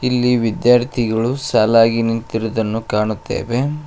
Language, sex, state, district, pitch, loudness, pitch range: Kannada, male, Karnataka, Koppal, 115 Hz, -17 LUFS, 110-125 Hz